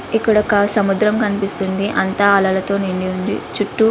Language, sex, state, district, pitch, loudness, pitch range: Telugu, female, Andhra Pradesh, Visakhapatnam, 200 Hz, -17 LUFS, 195-210 Hz